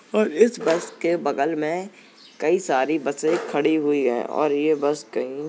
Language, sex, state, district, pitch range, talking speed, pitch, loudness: Hindi, male, Uttar Pradesh, Jalaun, 145-165 Hz, 185 wpm, 150 Hz, -22 LUFS